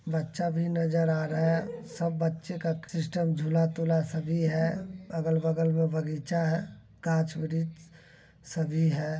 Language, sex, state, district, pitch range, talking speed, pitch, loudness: Angika, male, Bihar, Begusarai, 160-165 Hz, 145 wpm, 165 Hz, -29 LUFS